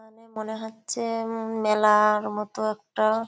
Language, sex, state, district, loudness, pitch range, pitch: Bengali, female, West Bengal, Kolkata, -25 LUFS, 215-225 Hz, 220 Hz